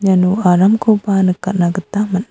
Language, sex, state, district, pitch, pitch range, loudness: Garo, female, Meghalaya, South Garo Hills, 190 Hz, 185-205 Hz, -14 LUFS